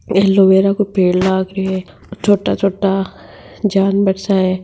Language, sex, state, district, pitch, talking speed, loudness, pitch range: Marwari, female, Rajasthan, Nagaur, 195 Hz, 130 wpm, -15 LUFS, 190-195 Hz